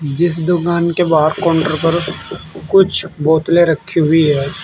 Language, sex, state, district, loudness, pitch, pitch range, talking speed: Hindi, male, Uttar Pradesh, Saharanpur, -14 LUFS, 165 Hz, 155-175 Hz, 140 wpm